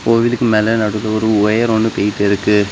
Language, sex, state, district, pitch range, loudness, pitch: Tamil, male, Tamil Nadu, Kanyakumari, 105-115 Hz, -15 LUFS, 110 Hz